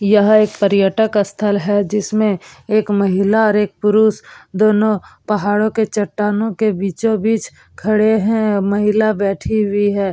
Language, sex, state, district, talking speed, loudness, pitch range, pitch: Hindi, female, Bihar, Vaishali, 135 wpm, -16 LUFS, 200-215 Hz, 210 Hz